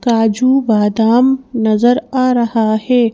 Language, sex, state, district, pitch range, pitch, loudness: Hindi, female, Madhya Pradesh, Bhopal, 225-255 Hz, 240 Hz, -13 LUFS